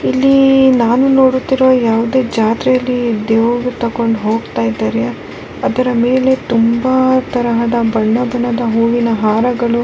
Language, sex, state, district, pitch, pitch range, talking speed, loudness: Kannada, female, Karnataka, Raichur, 240 Hz, 230-255 Hz, 45 wpm, -13 LUFS